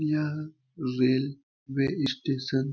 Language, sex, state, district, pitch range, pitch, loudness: Hindi, male, Chhattisgarh, Balrampur, 130-150 Hz, 140 Hz, -29 LUFS